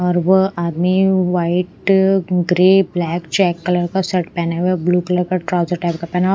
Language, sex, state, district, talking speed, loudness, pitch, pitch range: Hindi, female, Punjab, Pathankot, 150 wpm, -16 LUFS, 180 Hz, 175-185 Hz